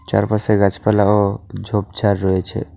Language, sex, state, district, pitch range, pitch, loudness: Bengali, male, West Bengal, Alipurduar, 100-105 Hz, 100 Hz, -17 LUFS